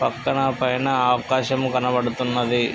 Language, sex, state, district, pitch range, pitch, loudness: Telugu, male, Andhra Pradesh, Krishna, 125-130 Hz, 125 Hz, -21 LUFS